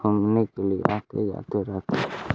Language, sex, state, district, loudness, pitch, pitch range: Hindi, male, Bihar, Kaimur, -26 LUFS, 105 Hz, 95-105 Hz